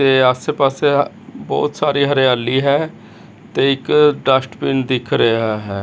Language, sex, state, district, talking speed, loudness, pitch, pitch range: Punjabi, male, Chandigarh, Chandigarh, 145 wpm, -16 LUFS, 135 Hz, 125-140 Hz